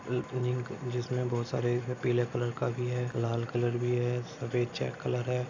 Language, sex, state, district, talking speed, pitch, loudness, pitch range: Hindi, male, Maharashtra, Dhule, 165 wpm, 125 Hz, -32 LUFS, 120-125 Hz